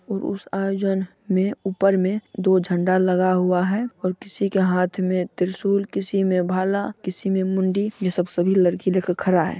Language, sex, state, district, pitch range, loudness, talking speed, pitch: Hindi, female, Bihar, Supaul, 185-195 Hz, -22 LUFS, 185 wpm, 190 Hz